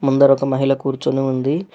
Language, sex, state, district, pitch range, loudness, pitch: Telugu, male, Telangana, Hyderabad, 135-140 Hz, -17 LUFS, 135 Hz